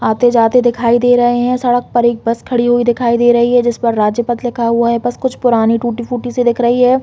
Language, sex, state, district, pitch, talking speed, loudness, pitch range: Hindi, female, Chhattisgarh, Bilaspur, 240 Hz, 255 wpm, -13 LUFS, 235-245 Hz